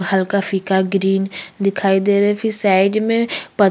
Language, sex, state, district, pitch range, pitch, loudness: Hindi, female, Chhattisgarh, Kabirdham, 195-205 Hz, 195 Hz, -17 LUFS